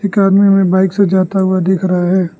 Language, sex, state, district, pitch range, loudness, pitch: Hindi, male, Arunachal Pradesh, Lower Dibang Valley, 185-195 Hz, -12 LUFS, 190 Hz